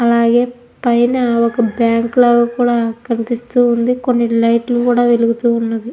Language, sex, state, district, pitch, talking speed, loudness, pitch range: Telugu, female, Andhra Pradesh, Anantapur, 235 Hz, 130 wpm, -14 LUFS, 230-245 Hz